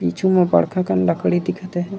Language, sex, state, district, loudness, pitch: Chhattisgarhi, male, Chhattisgarh, Raigarh, -19 LUFS, 175 Hz